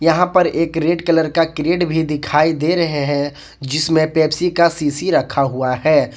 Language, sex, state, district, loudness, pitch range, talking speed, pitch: Hindi, male, Jharkhand, Ranchi, -16 LUFS, 145-170 Hz, 175 wpm, 160 Hz